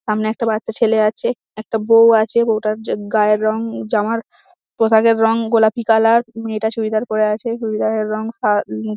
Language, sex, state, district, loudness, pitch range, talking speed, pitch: Bengali, female, West Bengal, Dakshin Dinajpur, -17 LUFS, 215-225 Hz, 175 wpm, 220 Hz